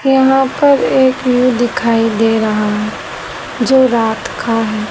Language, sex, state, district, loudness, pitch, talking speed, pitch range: Hindi, female, Madhya Pradesh, Dhar, -13 LUFS, 240 Hz, 145 wpm, 225-265 Hz